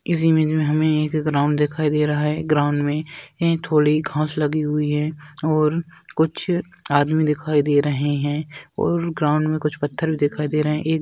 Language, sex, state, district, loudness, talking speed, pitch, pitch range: Hindi, female, Bihar, Madhepura, -21 LUFS, 190 wpm, 150 Hz, 150-155 Hz